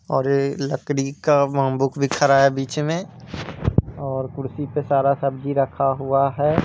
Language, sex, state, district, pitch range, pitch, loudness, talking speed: Hindi, male, Bihar, East Champaran, 135-145 Hz, 140 Hz, -21 LUFS, 145 wpm